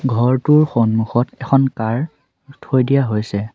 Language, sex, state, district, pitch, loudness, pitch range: Assamese, male, Assam, Sonitpur, 130 Hz, -17 LUFS, 115-140 Hz